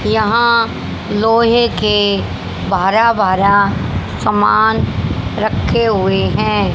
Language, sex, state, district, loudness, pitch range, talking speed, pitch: Hindi, female, Haryana, Jhajjar, -14 LUFS, 200-230 Hz, 60 wpm, 210 Hz